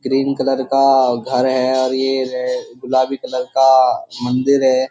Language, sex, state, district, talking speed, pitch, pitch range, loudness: Hindi, male, Uttar Pradesh, Jyotiba Phule Nagar, 160 wpm, 130 Hz, 130-135 Hz, -16 LUFS